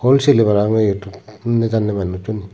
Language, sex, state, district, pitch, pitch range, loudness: Chakma, male, Tripura, Unakoti, 110 Hz, 100-115 Hz, -17 LUFS